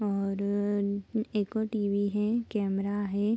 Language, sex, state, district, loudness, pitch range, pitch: Hindi, female, Bihar, Darbhanga, -30 LUFS, 200-215 Hz, 205 Hz